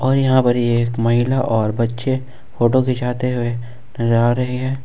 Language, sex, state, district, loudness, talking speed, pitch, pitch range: Hindi, male, Jharkhand, Ranchi, -18 LUFS, 185 wpm, 120 Hz, 120-130 Hz